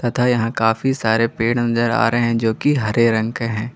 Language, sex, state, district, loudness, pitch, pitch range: Hindi, male, Jharkhand, Garhwa, -18 LUFS, 115 Hz, 115-120 Hz